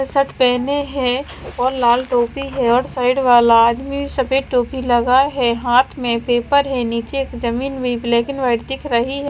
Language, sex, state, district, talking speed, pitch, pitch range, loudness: Hindi, female, Himachal Pradesh, Shimla, 170 wpm, 255 Hz, 240-270 Hz, -17 LUFS